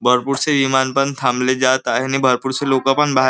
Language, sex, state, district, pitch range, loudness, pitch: Marathi, male, Maharashtra, Nagpur, 130-135 Hz, -17 LUFS, 130 Hz